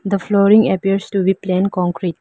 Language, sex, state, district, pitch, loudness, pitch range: English, female, Arunachal Pradesh, Lower Dibang Valley, 195 Hz, -16 LUFS, 185-200 Hz